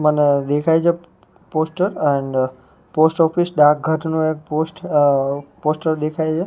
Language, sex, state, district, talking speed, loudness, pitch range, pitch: Gujarati, male, Gujarat, Gandhinagar, 120 wpm, -18 LUFS, 145-160 Hz, 155 Hz